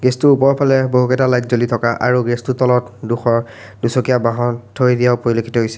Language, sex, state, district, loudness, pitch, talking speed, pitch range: Assamese, male, Assam, Sonitpur, -16 LUFS, 125 Hz, 175 wpm, 120-125 Hz